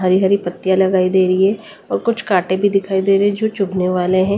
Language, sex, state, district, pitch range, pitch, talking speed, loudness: Hindi, female, Delhi, New Delhi, 185-200 Hz, 190 Hz, 260 wpm, -16 LUFS